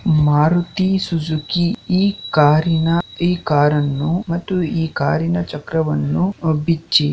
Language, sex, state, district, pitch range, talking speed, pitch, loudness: Kannada, male, Karnataka, Shimoga, 150-175 Hz, 90 wpm, 165 Hz, -18 LUFS